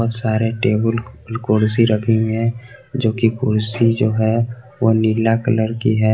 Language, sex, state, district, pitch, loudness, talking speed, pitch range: Hindi, male, Jharkhand, Garhwa, 115 Hz, -18 LUFS, 155 wpm, 110-115 Hz